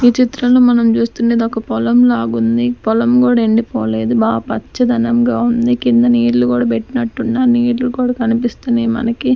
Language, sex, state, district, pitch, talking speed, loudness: Telugu, female, Andhra Pradesh, Sri Satya Sai, 235 Hz, 135 wpm, -14 LUFS